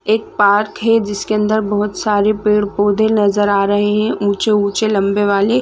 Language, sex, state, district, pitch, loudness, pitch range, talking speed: Hindi, female, Chhattisgarh, Raigarh, 205 Hz, -15 LUFS, 205-215 Hz, 160 wpm